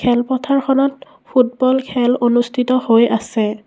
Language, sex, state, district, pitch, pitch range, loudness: Assamese, female, Assam, Kamrup Metropolitan, 250 Hz, 240-260 Hz, -16 LUFS